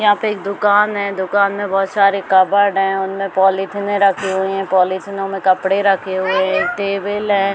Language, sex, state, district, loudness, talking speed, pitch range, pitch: Hindi, female, Chhattisgarh, Bastar, -16 LUFS, 190 wpm, 190-200 Hz, 195 Hz